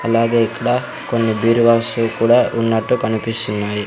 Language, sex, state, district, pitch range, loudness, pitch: Telugu, male, Andhra Pradesh, Sri Satya Sai, 110-115 Hz, -16 LUFS, 115 Hz